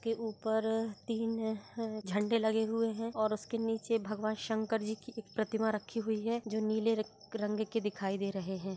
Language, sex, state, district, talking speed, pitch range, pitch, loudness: Hindi, female, Bihar, Muzaffarpur, 200 wpm, 215-225 Hz, 220 Hz, -35 LUFS